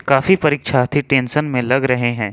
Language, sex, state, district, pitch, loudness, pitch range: Hindi, male, Jharkhand, Ranchi, 135 Hz, -16 LUFS, 125-145 Hz